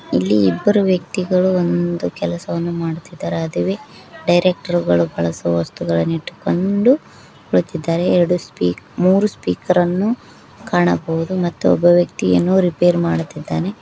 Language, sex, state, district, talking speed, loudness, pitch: Kannada, female, Karnataka, Koppal, 95 wpm, -18 LUFS, 175 Hz